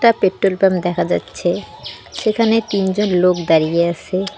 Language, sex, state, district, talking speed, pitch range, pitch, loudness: Bengali, female, West Bengal, Cooch Behar, 110 wpm, 175-210 Hz, 190 Hz, -17 LUFS